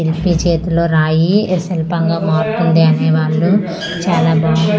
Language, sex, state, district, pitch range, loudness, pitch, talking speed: Telugu, female, Andhra Pradesh, Manyam, 160-175 Hz, -14 LUFS, 165 Hz, 125 wpm